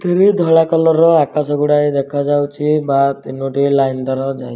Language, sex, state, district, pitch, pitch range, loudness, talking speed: Odia, male, Odisha, Malkangiri, 145 Hz, 140-160 Hz, -14 LUFS, 160 wpm